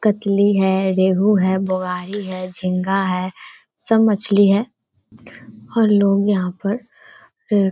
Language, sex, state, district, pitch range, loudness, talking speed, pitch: Hindi, female, Bihar, Darbhanga, 185-205 Hz, -18 LUFS, 130 wpm, 195 Hz